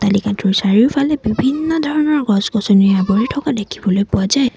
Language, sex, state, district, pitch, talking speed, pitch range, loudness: Assamese, female, Assam, Sonitpur, 215 Hz, 130 wpm, 200-280 Hz, -15 LUFS